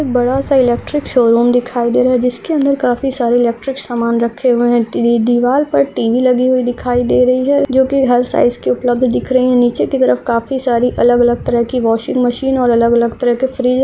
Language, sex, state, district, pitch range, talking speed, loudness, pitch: Hindi, female, Andhra Pradesh, Chittoor, 240-260 Hz, 235 wpm, -13 LUFS, 245 Hz